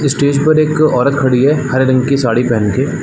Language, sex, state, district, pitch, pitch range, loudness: Hindi, male, Chhattisgarh, Balrampur, 140 Hz, 130-145 Hz, -12 LUFS